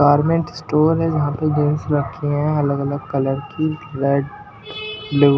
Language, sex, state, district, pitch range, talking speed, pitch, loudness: Hindi, male, Punjab, Pathankot, 140-155 Hz, 145 wpm, 145 Hz, -20 LUFS